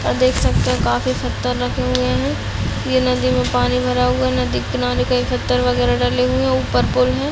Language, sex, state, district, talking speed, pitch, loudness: Hindi, female, Chhattisgarh, Raigarh, 215 wpm, 125 Hz, -18 LUFS